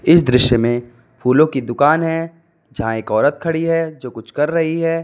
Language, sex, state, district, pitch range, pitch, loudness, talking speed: Hindi, male, Uttar Pradesh, Lalitpur, 120-165 Hz, 145 Hz, -17 LUFS, 200 wpm